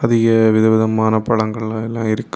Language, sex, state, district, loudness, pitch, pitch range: Tamil, male, Tamil Nadu, Kanyakumari, -16 LUFS, 110 Hz, 110-115 Hz